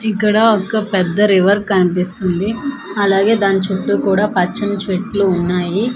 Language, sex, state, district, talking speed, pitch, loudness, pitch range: Telugu, female, Andhra Pradesh, Manyam, 120 wpm, 200 Hz, -15 LUFS, 190-210 Hz